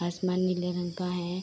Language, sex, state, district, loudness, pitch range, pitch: Hindi, female, Bihar, Saharsa, -30 LUFS, 175-185 Hz, 180 Hz